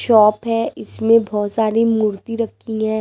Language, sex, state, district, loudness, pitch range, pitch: Hindi, female, Delhi, New Delhi, -18 LUFS, 215-230 Hz, 220 Hz